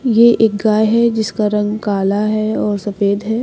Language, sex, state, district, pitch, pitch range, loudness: Hindi, female, Bihar, Patna, 215 Hz, 205-225 Hz, -15 LUFS